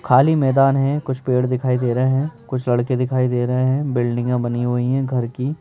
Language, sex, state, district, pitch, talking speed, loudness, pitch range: Hindi, male, Madhya Pradesh, Bhopal, 130 Hz, 235 wpm, -19 LUFS, 125-135 Hz